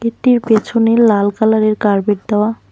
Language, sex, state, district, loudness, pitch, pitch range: Bengali, female, West Bengal, Cooch Behar, -13 LUFS, 220 Hz, 210-230 Hz